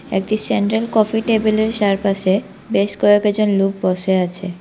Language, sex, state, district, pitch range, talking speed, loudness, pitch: Bengali, female, Assam, Kamrup Metropolitan, 195-215 Hz, 145 wpm, -17 LUFS, 205 Hz